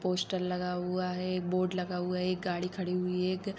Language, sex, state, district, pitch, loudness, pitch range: Hindi, female, Jharkhand, Sahebganj, 180 Hz, -33 LUFS, 180-185 Hz